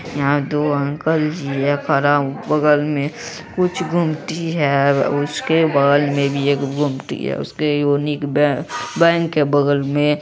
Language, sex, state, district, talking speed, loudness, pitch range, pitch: Hindi, female, Bihar, Araria, 145 wpm, -18 LUFS, 140-155 Hz, 145 Hz